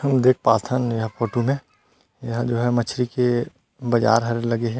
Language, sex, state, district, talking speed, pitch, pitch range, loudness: Chhattisgarhi, male, Chhattisgarh, Rajnandgaon, 175 wpm, 120 Hz, 115-125 Hz, -21 LUFS